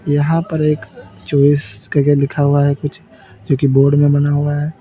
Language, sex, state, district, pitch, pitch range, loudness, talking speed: Hindi, male, Uttar Pradesh, Lalitpur, 145 Hz, 140-145 Hz, -15 LUFS, 200 wpm